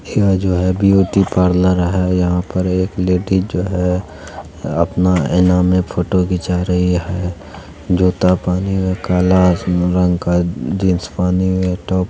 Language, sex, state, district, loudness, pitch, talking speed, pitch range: Maithili, male, Bihar, Araria, -16 LUFS, 90 Hz, 160 wpm, 90-95 Hz